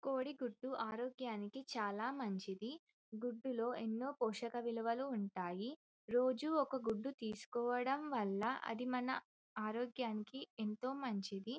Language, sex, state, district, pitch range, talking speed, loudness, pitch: Telugu, female, Telangana, Karimnagar, 220-260 Hz, 115 wpm, -42 LUFS, 240 Hz